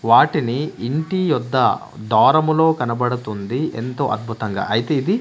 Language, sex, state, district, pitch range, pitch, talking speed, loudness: Telugu, male, Andhra Pradesh, Manyam, 115-155 Hz, 125 Hz, 105 wpm, -19 LUFS